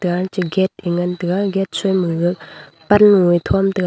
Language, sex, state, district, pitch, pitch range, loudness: Wancho, female, Arunachal Pradesh, Longding, 180 Hz, 175-195 Hz, -17 LUFS